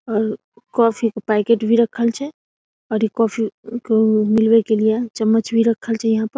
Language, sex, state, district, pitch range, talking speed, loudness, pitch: Maithili, female, Bihar, Samastipur, 220-230 Hz, 195 wpm, -18 LUFS, 225 Hz